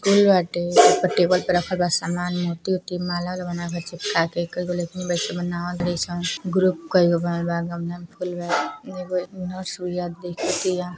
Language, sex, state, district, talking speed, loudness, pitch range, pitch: Bhojpuri, female, Uttar Pradesh, Deoria, 200 wpm, -23 LUFS, 175-180 Hz, 175 Hz